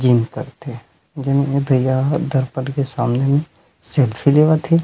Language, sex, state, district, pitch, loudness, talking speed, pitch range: Chhattisgarhi, male, Chhattisgarh, Rajnandgaon, 135 Hz, -18 LUFS, 160 wpm, 130-145 Hz